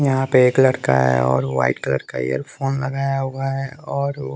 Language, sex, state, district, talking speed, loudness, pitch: Hindi, male, Bihar, West Champaran, 220 wpm, -19 LUFS, 130 Hz